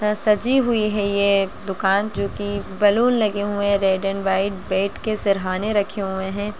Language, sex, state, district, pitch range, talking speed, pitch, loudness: Hindi, female, Bihar, Gaya, 195-210 Hz, 180 wpm, 200 Hz, -21 LUFS